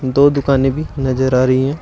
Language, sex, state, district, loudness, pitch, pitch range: Hindi, male, Uttar Pradesh, Shamli, -15 LUFS, 135 Hz, 130-140 Hz